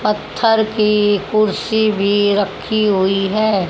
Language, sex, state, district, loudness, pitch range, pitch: Hindi, male, Haryana, Rohtak, -16 LUFS, 200-215 Hz, 210 Hz